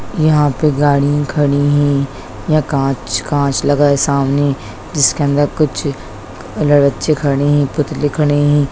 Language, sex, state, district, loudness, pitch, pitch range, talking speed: Hindi, female, Bihar, Sitamarhi, -14 LUFS, 145 Hz, 140-145 Hz, 135 wpm